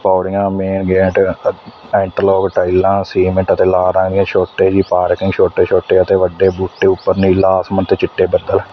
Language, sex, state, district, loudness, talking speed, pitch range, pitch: Punjabi, male, Punjab, Fazilka, -14 LUFS, 165 wpm, 95-100 Hz, 95 Hz